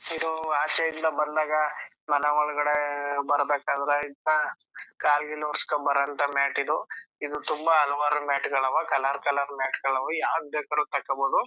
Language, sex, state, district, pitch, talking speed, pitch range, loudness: Kannada, male, Karnataka, Chamarajanagar, 145 Hz, 145 wpm, 140-150 Hz, -26 LUFS